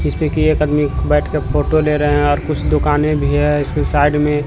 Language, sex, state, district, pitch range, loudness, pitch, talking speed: Hindi, male, Bihar, Katihar, 140-150 Hz, -16 LUFS, 150 Hz, 200 wpm